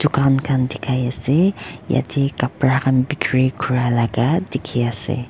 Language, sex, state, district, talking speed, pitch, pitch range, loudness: Nagamese, female, Nagaland, Dimapur, 135 wpm, 130 Hz, 125-140 Hz, -19 LUFS